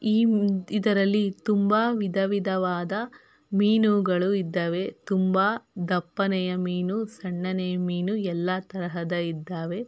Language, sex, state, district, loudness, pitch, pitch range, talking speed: Kannada, female, Karnataka, Mysore, -25 LUFS, 190 Hz, 180-210 Hz, 90 wpm